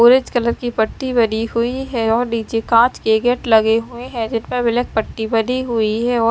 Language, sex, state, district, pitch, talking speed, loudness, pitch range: Hindi, female, Chandigarh, Chandigarh, 235 Hz, 210 wpm, -17 LUFS, 225-245 Hz